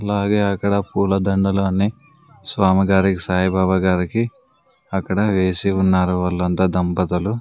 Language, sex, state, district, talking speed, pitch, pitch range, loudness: Telugu, male, Andhra Pradesh, Sri Satya Sai, 95 wpm, 95 Hz, 95-100 Hz, -19 LUFS